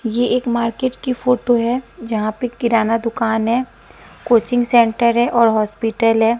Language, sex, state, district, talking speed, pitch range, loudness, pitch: Hindi, female, Bihar, West Champaran, 160 wpm, 225-245 Hz, -17 LUFS, 235 Hz